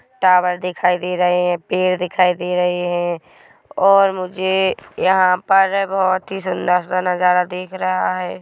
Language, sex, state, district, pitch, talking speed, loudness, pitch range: Hindi, female, Chhattisgarh, Korba, 180 Hz, 150 wpm, -17 LUFS, 180-185 Hz